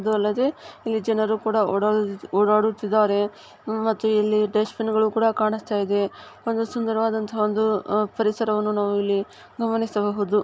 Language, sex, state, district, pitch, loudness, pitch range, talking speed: Kannada, female, Karnataka, Chamarajanagar, 215 Hz, -23 LUFS, 210-220 Hz, 110 wpm